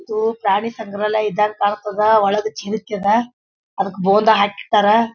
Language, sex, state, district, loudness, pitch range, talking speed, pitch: Kannada, female, Karnataka, Bijapur, -18 LUFS, 205-220 Hz, 140 wpm, 210 Hz